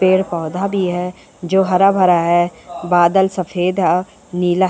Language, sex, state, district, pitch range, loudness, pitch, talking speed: Hindi, female, Uttarakhand, Uttarkashi, 175-190 Hz, -16 LUFS, 180 Hz, 140 wpm